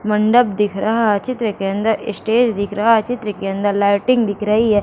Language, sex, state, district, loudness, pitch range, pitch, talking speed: Hindi, female, Madhya Pradesh, Katni, -17 LUFS, 205-230 Hz, 210 Hz, 225 wpm